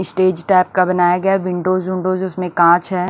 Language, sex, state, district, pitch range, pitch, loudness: Hindi, female, Maharashtra, Washim, 180-185 Hz, 185 Hz, -16 LUFS